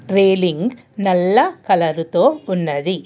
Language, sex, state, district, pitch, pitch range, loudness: Telugu, female, Telangana, Hyderabad, 185 Hz, 170-225 Hz, -17 LUFS